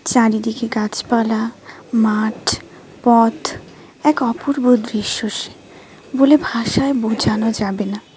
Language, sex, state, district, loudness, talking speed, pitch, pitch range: Bengali, female, Tripura, West Tripura, -18 LUFS, 95 wpm, 230 Hz, 220-250 Hz